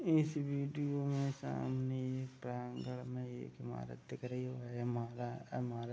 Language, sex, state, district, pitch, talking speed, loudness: Hindi, male, Bihar, Gopalganj, 125 Hz, 150 wpm, -41 LUFS